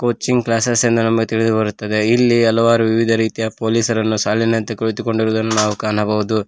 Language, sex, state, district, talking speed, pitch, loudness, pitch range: Kannada, male, Karnataka, Koppal, 150 wpm, 110 Hz, -16 LUFS, 110-115 Hz